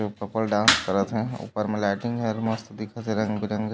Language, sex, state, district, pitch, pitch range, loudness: Chhattisgarhi, male, Chhattisgarh, Raigarh, 110 Hz, 105-110 Hz, -25 LUFS